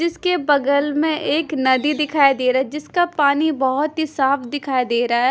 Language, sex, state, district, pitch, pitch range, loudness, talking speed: Hindi, female, Punjab, Kapurthala, 285 Hz, 265-310 Hz, -18 LUFS, 205 wpm